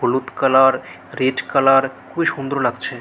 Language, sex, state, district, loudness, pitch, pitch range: Bengali, male, West Bengal, Malda, -18 LUFS, 135 Hz, 130-135 Hz